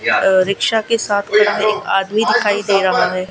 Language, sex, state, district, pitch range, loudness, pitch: Hindi, female, Gujarat, Gandhinagar, 195-215 Hz, -15 LUFS, 205 Hz